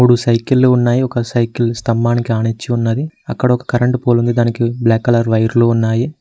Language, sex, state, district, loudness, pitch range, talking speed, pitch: Telugu, male, Telangana, Mahabubabad, -15 LUFS, 115-125 Hz, 175 wpm, 120 Hz